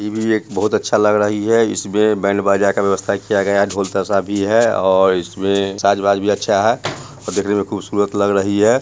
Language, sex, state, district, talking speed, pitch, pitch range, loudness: Hindi, male, Bihar, Muzaffarpur, 195 wpm, 100 Hz, 100-105 Hz, -16 LUFS